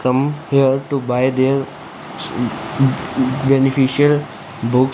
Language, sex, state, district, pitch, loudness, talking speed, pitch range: English, male, Punjab, Fazilka, 135 Hz, -17 LUFS, 110 wpm, 130-140 Hz